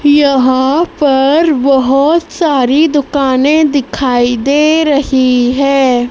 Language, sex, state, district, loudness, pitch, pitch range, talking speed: Hindi, female, Madhya Pradesh, Dhar, -10 LUFS, 275 Hz, 260-295 Hz, 90 wpm